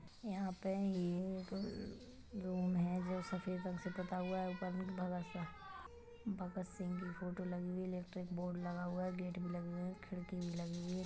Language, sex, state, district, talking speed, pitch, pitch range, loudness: Hindi, female, Chhattisgarh, Kabirdham, 210 wpm, 185 Hz, 180-190 Hz, -43 LUFS